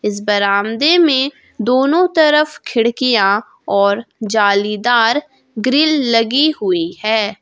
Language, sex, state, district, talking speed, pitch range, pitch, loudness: Hindi, female, Jharkhand, Ranchi, 95 wpm, 210-295 Hz, 235 Hz, -14 LUFS